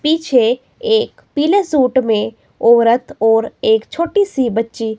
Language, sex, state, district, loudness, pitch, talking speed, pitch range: Hindi, female, Himachal Pradesh, Shimla, -15 LUFS, 260 Hz, 135 wpm, 230-340 Hz